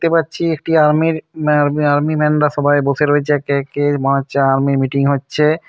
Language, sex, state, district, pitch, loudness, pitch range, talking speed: Bengali, male, West Bengal, Kolkata, 145 Hz, -15 LUFS, 140-155 Hz, 200 wpm